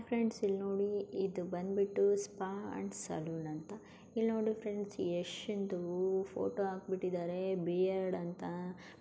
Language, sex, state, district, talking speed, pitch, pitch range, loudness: Kannada, female, Karnataka, Gulbarga, 105 wpm, 190 Hz, 175-200 Hz, -37 LUFS